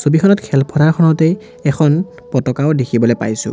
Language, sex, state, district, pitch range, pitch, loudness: Assamese, male, Assam, Sonitpur, 130-165 Hz, 155 Hz, -14 LUFS